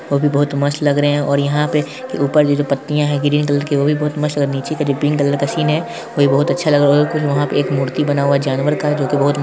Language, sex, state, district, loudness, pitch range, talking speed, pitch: Hindi, male, Bihar, Saharsa, -16 LUFS, 140-150 Hz, 345 wpm, 145 Hz